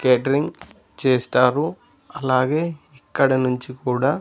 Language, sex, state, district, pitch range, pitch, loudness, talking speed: Telugu, male, Andhra Pradesh, Sri Satya Sai, 130-145 Hz, 135 Hz, -21 LUFS, 85 wpm